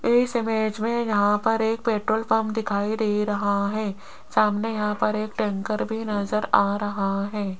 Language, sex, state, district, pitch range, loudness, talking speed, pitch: Hindi, female, Rajasthan, Jaipur, 205-225 Hz, -24 LUFS, 175 wpm, 215 Hz